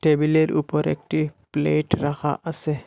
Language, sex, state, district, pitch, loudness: Bengali, male, Assam, Hailakandi, 145 Hz, -23 LUFS